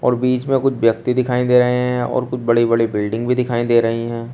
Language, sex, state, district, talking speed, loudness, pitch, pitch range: Hindi, male, Uttar Pradesh, Shamli, 260 wpm, -17 LUFS, 125 Hz, 115-125 Hz